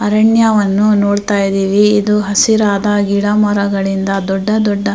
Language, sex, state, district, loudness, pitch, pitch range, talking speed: Kannada, female, Karnataka, Mysore, -13 LUFS, 205 Hz, 200-210 Hz, 95 wpm